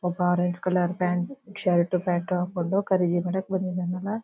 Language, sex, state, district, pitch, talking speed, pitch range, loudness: Kannada, female, Karnataka, Shimoga, 180 Hz, 140 wpm, 175-190 Hz, -26 LUFS